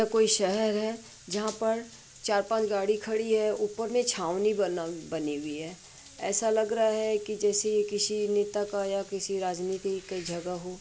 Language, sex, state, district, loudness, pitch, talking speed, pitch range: Hindi, female, Bihar, Madhepura, -29 LUFS, 205 Hz, 180 wpm, 185-220 Hz